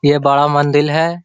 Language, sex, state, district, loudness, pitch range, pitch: Hindi, male, Bihar, Jahanabad, -13 LUFS, 145-160 Hz, 145 Hz